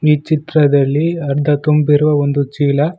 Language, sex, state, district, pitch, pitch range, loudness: Kannada, male, Karnataka, Koppal, 150 Hz, 145-155 Hz, -14 LUFS